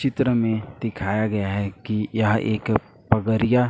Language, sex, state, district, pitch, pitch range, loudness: Hindi, male, Chhattisgarh, Raipur, 110 Hz, 105-115 Hz, -23 LUFS